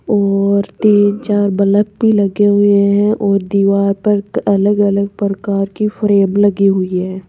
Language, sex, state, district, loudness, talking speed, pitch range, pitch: Hindi, female, Rajasthan, Jaipur, -13 LUFS, 155 wpm, 200-205 Hz, 200 Hz